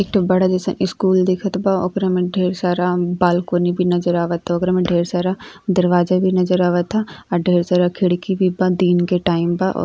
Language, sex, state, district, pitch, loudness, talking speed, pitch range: Bhojpuri, female, Uttar Pradesh, Ghazipur, 180 Hz, -18 LUFS, 205 wpm, 175-185 Hz